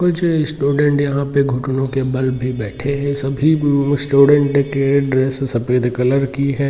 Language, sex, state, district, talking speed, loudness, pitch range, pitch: Hindi, male, Jharkhand, Jamtara, 150 wpm, -17 LUFS, 130-140 Hz, 140 Hz